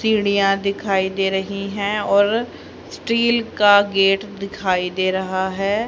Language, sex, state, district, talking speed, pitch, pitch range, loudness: Hindi, female, Haryana, Rohtak, 135 wpm, 200 Hz, 195-210 Hz, -19 LUFS